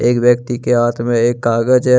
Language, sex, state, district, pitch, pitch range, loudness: Hindi, male, Jharkhand, Deoghar, 120 Hz, 120-125 Hz, -15 LUFS